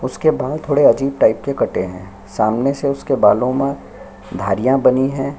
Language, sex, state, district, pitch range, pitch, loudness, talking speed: Hindi, male, Chhattisgarh, Sukma, 110-140 Hz, 130 Hz, -17 LUFS, 180 wpm